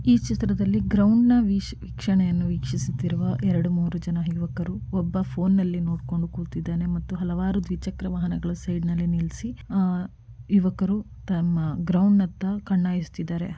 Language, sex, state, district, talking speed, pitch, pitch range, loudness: Kannada, female, Karnataka, Mysore, 95 wpm, 175 Hz, 170-190 Hz, -25 LUFS